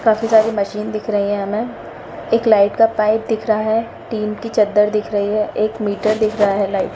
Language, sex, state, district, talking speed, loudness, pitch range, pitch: Hindi, female, Bihar, Darbhanga, 230 wpm, -17 LUFS, 205-220 Hz, 215 Hz